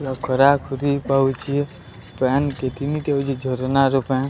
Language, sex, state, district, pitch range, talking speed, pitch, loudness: Odia, male, Odisha, Sambalpur, 130-140 Hz, 125 wpm, 135 Hz, -21 LUFS